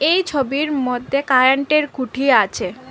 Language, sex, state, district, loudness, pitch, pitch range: Bengali, female, Assam, Hailakandi, -17 LUFS, 275 Hz, 260-295 Hz